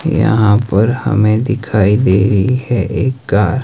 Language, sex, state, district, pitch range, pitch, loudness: Hindi, male, Himachal Pradesh, Shimla, 105-130 Hz, 110 Hz, -13 LUFS